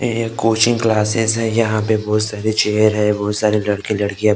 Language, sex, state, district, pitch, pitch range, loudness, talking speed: Hindi, male, Maharashtra, Gondia, 110 Hz, 105-115 Hz, -17 LUFS, 245 wpm